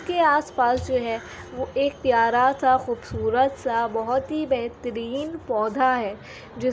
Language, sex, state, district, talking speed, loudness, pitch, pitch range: Hindi, female, Uttar Pradesh, Jyotiba Phule Nagar, 150 wpm, -23 LUFS, 255 Hz, 235-270 Hz